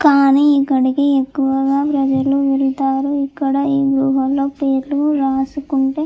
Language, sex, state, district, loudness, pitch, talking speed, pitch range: Telugu, female, Andhra Pradesh, Chittoor, -16 LUFS, 275 Hz, 120 wpm, 270-280 Hz